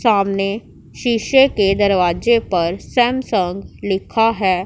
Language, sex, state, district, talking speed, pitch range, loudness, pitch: Hindi, female, Punjab, Pathankot, 105 wpm, 190-235 Hz, -17 LUFS, 205 Hz